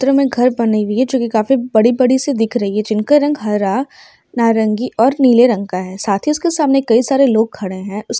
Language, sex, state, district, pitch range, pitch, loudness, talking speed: Hindi, female, Bihar, Sitamarhi, 215-265 Hz, 235 Hz, -15 LUFS, 250 wpm